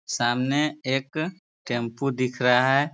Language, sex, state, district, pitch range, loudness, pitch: Hindi, male, Bihar, Sitamarhi, 125-145 Hz, -24 LUFS, 135 Hz